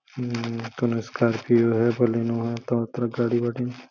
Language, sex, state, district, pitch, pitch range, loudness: Bhojpuri, male, Uttar Pradesh, Gorakhpur, 120 Hz, 115-120 Hz, -24 LUFS